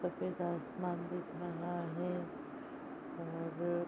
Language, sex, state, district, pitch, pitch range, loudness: Hindi, female, Uttar Pradesh, Deoria, 175 Hz, 175-230 Hz, -41 LUFS